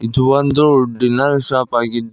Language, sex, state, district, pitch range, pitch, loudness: Kannada, male, Karnataka, Koppal, 120-140 Hz, 130 Hz, -15 LUFS